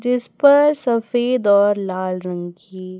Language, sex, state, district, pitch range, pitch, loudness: Hindi, female, Chhattisgarh, Raipur, 185-250 Hz, 205 Hz, -17 LUFS